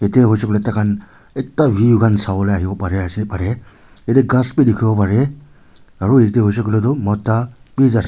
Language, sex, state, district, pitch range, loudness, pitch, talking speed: Nagamese, male, Nagaland, Kohima, 100-125 Hz, -16 LUFS, 110 Hz, 185 wpm